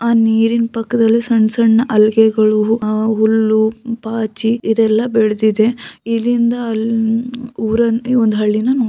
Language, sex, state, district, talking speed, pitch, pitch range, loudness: Kannada, female, Karnataka, Shimoga, 135 wpm, 225 Hz, 220-235 Hz, -15 LUFS